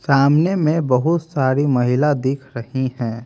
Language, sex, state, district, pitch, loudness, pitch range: Hindi, male, Haryana, Jhajjar, 135 Hz, -18 LUFS, 125-155 Hz